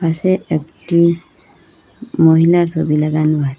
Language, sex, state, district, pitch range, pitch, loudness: Bengali, female, Assam, Hailakandi, 155-170 Hz, 165 Hz, -14 LUFS